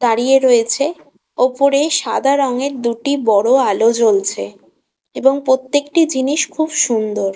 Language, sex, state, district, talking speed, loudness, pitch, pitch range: Bengali, female, West Bengal, Kolkata, 115 wpm, -15 LUFS, 270 Hz, 240-290 Hz